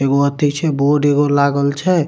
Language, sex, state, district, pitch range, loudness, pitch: Maithili, male, Bihar, Supaul, 140-145 Hz, -15 LUFS, 145 Hz